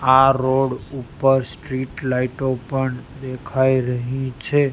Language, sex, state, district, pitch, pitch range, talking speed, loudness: Gujarati, male, Gujarat, Gandhinagar, 130 Hz, 125-135 Hz, 115 wpm, -20 LUFS